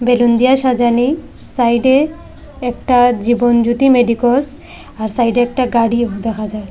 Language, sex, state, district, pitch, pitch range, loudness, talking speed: Bengali, female, Assam, Hailakandi, 240 Hz, 235-255 Hz, -14 LUFS, 145 wpm